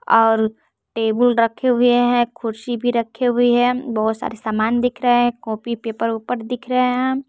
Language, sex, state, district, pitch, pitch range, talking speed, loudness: Hindi, male, Bihar, West Champaran, 240 Hz, 225-245 Hz, 180 wpm, -19 LUFS